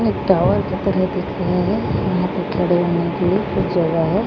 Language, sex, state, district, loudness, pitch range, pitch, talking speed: Hindi, female, Odisha, Malkangiri, -19 LUFS, 175-185 Hz, 180 Hz, 210 wpm